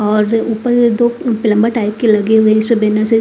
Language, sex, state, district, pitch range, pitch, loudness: Hindi, female, Bihar, Katihar, 215-235 Hz, 220 Hz, -13 LUFS